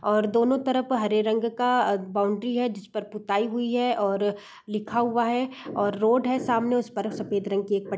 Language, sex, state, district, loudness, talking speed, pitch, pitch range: Hindi, female, Bihar, East Champaran, -25 LUFS, 210 wpm, 220 Hz, 205-245 Hz